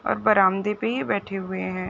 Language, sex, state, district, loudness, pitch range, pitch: Hindi, female, Chhattisgarh, Bilaspur, -23 LUFS, 185-215 Hz, 195 Hz